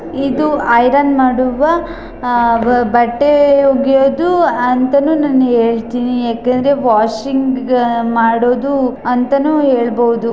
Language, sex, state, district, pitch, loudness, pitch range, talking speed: Kannada, female, Karnataka, Chamarajanagar, 255 Hz, -13 LUFS, 240-280 Hz, 70 wpm